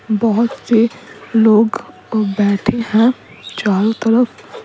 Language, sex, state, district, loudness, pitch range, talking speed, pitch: Hindi, female, Bihar, Patna, -15 LUFS, 215-235 Hz, 90 wpm, 225 Hz